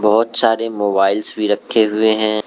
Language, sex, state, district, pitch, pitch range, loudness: Hindi, male, Arunachal Pradesh, Lower Dibang Valley, 110 Hz, 105-110 Hz, -16 LUFS